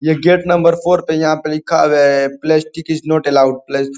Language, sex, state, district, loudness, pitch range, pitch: Hindi, male, Uttar Pradesh, Ghazipur, -14 LUFS, 140-165 Hz, 155 Hz